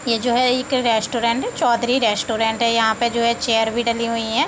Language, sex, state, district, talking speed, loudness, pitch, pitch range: Hindi, female, Uttar Pradesh, Deoria, 255 wpm, -19 LUFS, 235 Hz, 225-240 Hz